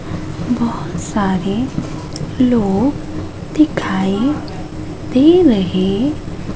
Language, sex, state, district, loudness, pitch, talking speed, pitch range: Hindi, female, Madhya Pradesh, Katni, -16 LUFS, 215 Hz, 55 wpm, 190-265 Hz